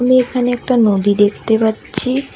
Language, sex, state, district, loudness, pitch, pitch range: Bengali, female, West Bengal, Alipurduar, -15 LUFS, 240 Hz, 210-255 Hz